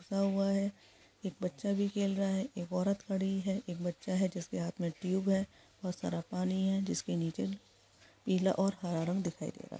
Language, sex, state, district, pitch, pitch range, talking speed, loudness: Hindi, female, Bihar, East Champaran, 190 Hz, 175-195 Hz, 200 wpm, -35 LUFS